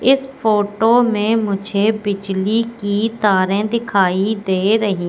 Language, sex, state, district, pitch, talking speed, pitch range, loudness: Hindi, female, Madhya Pradesh, Katni, 210 Hz, 120 wpm, 200-225 Hz, -17 LUFS